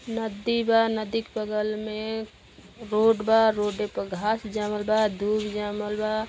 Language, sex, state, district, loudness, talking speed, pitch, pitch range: Bhojpuri, female, Uttar Pradesh, Gorakhpur, -26 LUFS, 155 wpm, 215 Hz, 210-220 Hz